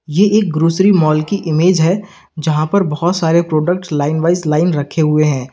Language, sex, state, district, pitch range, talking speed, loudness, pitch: Hindi, male, Uttar Pradesh, Lalitpur, 155-185 Hz, 195 wpm, -14 LUFS, 165 Hz